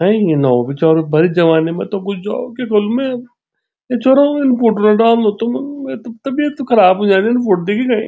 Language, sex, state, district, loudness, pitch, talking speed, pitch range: Garhwali, male, Uttarakhand, Tehri Garhwal, -14 LUFS, 220 Hz, 220 wpm, 185-250 Hz